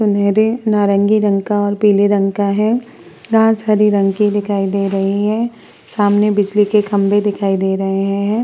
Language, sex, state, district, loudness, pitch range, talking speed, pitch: Hindi, female, Uttar Pradesh, Hamirpur, -15 LUFS, 200-210 Hz, 180 wpm, 205 Hz